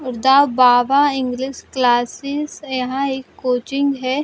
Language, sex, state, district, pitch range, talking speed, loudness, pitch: Hindi, female, Bihar, Sitamarhi, 250-275 Hz, 130 wpm, -17 LUFS, 265 Hz